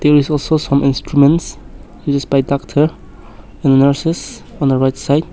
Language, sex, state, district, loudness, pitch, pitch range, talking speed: English, male, Nagaland, Kohima, -15 LUFS, 140 Hz, 135-150 Hz, 145 wpm